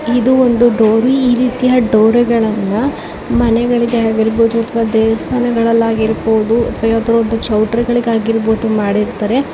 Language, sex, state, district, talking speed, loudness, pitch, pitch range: Kannada, female, Karnataka, Dakshina Kannada, 75 wpm, -13 LUFS, 230 Hz, 220-240 Hz